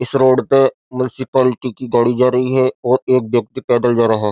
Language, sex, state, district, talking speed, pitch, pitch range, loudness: Hindi, male, Uttar Pradesh, Jyotiba Phule Nagar, 220 wpm, 125 Hz, 120-130 Hz, -15 LUFS